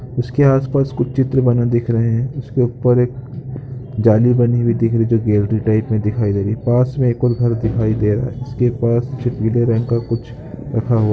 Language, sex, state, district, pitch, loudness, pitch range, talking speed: Hindi, male, Uttar Pradesh, Varanasi, 120 Hz, -17 LUFS, 115-125 Hz, 220 wpm